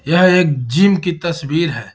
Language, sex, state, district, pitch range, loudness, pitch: Hindi, male, Bihar, Gaya, 150-180 Hz, -15 LUFS, 170 Hz